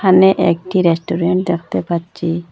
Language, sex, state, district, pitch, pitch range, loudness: Bengali, female, Assam, Hailakandi, 175 Hz, 170-185 Hz, -16 LUFS